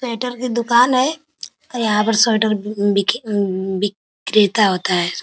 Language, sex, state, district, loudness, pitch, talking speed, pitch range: Hindi, female, Uttar Pradesh, Ghazipur, -17 LUFS, 215 Hz, 170 wpm, 200-240 Hz